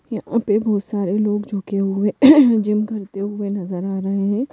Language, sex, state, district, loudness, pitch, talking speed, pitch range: Hindi, female, Madhya Pradesh, Bhopal, -18 LUFS, 205 Hz, 185 wpm, 195-215 Hz